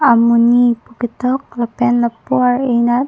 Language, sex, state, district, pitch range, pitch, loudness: Karbi, female, Assam, Karbi Anglong, 235-250 Hz, 240 Hz, -15 LUFS